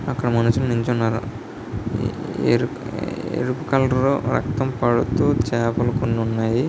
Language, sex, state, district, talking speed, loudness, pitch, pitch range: Telugu, male, Andhra Pradesh, Srikakulam, 90 wpm, -21 LUFS, 120 Hz, 115-130 Hz